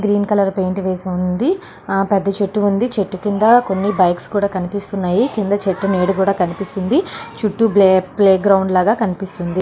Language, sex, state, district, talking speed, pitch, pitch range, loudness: Telugu, female, Andhra Pradesh, Srikakulam, 160 wpm, 195 Hz, 190-210 Hz, -16 LUFS